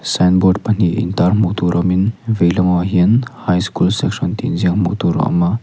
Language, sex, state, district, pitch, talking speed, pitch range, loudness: Mizo, male, Mizoram, Aizawl, 90 Hz, 225 wpm, 90-105 Hz, -15 LUFS